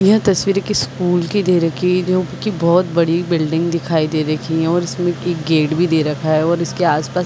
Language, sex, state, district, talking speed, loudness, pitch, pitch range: Hindi, female, Chhattisgarh, Bilaspur, 215 wpm, -17 LUFS, 170 Hz, 160-180 Hz